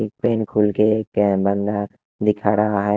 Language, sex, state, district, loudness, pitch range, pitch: Hindi, male, Haryana, Jhajjar, -20 LUFS, 100-110 Hz, 105 Hz